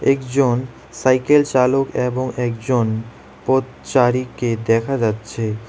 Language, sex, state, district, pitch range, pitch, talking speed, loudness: Bengali, male, West Bengal, Alipurduar, 115-130 Hz, 125 Hz, 85 wpm, -19 LUFS